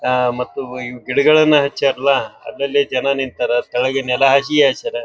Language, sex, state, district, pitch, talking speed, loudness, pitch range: Kannada, male, Karnataka, Bijapur, 135 Hz, 145 wpm, -16 LUFS, 125-140 Hz